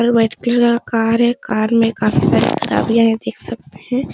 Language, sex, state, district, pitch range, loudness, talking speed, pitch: Hindi, female, Bihar, Supaul, 220-235 Hz, -16 LUFS, 205 wpm, 230 Hz